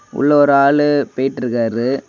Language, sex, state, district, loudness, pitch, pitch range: Tamil, male, Tamil Nadu, Kanyakumari, -15 LUFS, 140 Hz, 125-145 Hz